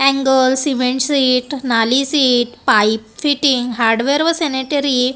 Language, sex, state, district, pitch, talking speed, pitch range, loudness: Marathi, female, Maharashtra, Gondia, 260 Hz, 130 wpm, 245-280 Hz, -15 LUFS